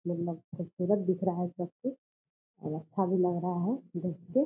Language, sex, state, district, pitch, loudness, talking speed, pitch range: Angika, female, Bihar, Purnia, 180 Hz, -33 LUFS, 215 wpm, 175-190 Hz